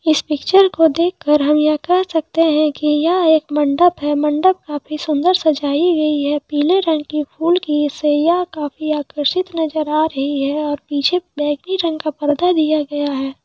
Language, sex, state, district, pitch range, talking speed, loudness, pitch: Hindi, female, Jharkhand, Sahebganj, 295-330 Hz, 185 wpm, -16 LUFS, 305 Hz